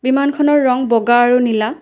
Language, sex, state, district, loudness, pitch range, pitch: Assamese, female, Assam, Kamrup Metropolitan, -14 LUFS, 240-280 Hz, 250 Hz